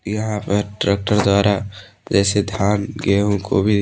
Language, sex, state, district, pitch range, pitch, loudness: Hindi, male, Odisha, Malkangiri, 100-105 Hz, 100 Hz, -18 LUFS